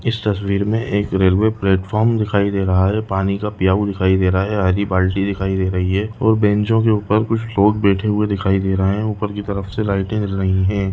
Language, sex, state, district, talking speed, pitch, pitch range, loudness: Hindi, male, Chhattisgarh, Balrampur, 235 wpm, 100 Hz, 95-105 Hz, -18 LUFS